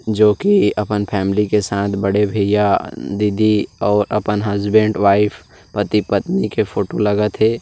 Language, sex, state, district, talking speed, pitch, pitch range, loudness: Chhattisgarhi, male, Chhattisgarh, Rajnandgaon, 150 wpm, 105 Hz, 100-105 Hz, -17 LUFS